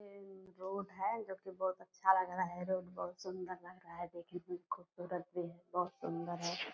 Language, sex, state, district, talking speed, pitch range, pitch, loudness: Hindi, female, Bihar, Purnia, 205 wpm, 175-190 Hz, 180 Hz, -41 LUFS